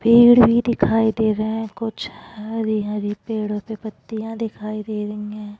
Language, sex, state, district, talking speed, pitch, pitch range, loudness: Hindi, female, Goa, North and South Goa, 170 wpm, 220 Hz, 210-225 Hz, -20 LUFS